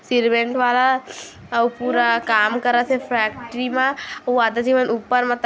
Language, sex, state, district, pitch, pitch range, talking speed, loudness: Hindi, female, Chhattisgarh, Kabirdham, 245 Hz, 235-250 Hz, 165 wpm, -19 LUFS